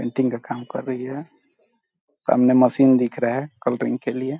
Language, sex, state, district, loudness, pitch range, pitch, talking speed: Hindi, male, Chhattisgarh, Balrampur, -21 LUFS, 125-140 Hz, 130 Hz, 205 wpm